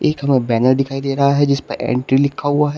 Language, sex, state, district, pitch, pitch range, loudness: Hindi, male, Uttar Pradesh, Shamli, 140 Hz, 135-145 Hz, -16 LUFS